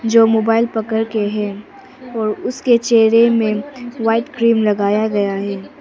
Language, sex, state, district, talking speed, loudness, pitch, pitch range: Hindi, female, Arunachal Pradesh, Papum Pare, 145 wpm, -16 LUFS, 225 Hz, 210-230 Hz